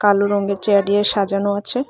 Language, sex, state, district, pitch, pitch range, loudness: Bengali, female, Tripura, West Tripura, 205 Hz, 200-205 Hz, -17 LUFS